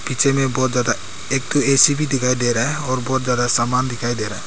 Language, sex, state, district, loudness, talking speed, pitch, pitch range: Hindi, male, Arunachal Pradesh, Papum Pare, -18 LUFS, 255 wpm, 125 Hz, 120-135 Hz